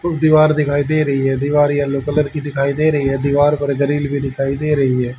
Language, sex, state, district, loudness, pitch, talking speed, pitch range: Hindi, male, Haryana, Charkhi Dadri, -16 LUFS, 145 Hz, 255 wpm, 140-150 Hz